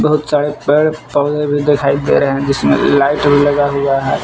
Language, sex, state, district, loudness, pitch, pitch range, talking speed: Hindi, male, Jharkhand, Palamu, -13 LUFS, 145 Hz, 140-150 Hz, 200 wpm